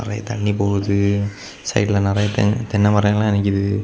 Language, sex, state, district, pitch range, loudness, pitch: Tamil, male, Tamil Nadu, Kanyakumari, 100-105 Hz, -19 LUFS, 105 Hz